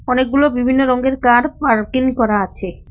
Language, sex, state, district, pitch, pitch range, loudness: Bengali, female, West Bengal, Cooch Behar, 250 Hz, 230-265 Hz, -15 LUFS